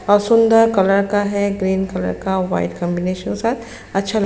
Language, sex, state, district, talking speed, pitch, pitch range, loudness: Hindi, female, Chhattisgarh, Sukma, 195 wpm, 200 Hz, 190-215 Hz, -17 LUFS